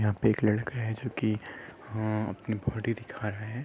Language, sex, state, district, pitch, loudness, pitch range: Hindi, male, Uttar Pradesh, Gorakhpur, 110 Hz, -31 LUFS, 110-115 Hz